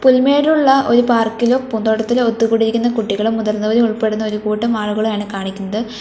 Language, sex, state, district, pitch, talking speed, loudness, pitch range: Malayalam, female, Kerala, Kollam, 225 Hz, 110 wpm, -16 LUFS, 215-240 Hz